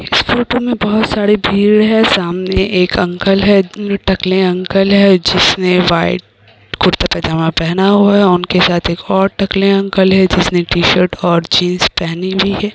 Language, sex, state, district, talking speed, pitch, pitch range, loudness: Hindi, female, Bihar, Kishanganj, 165 wpm, 190 Hz, 180-200 Hz, -12 LUFS